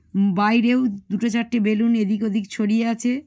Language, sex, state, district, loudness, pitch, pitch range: Bengali, female, West Bengal, Malda, -21 LUFS, 220 Hz, 210-235 Hz